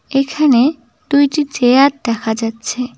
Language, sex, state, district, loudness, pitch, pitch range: Bengali, female, West Bengal, Cooch Behar, -14 LUFS, 265 Hz, 240-285 Hz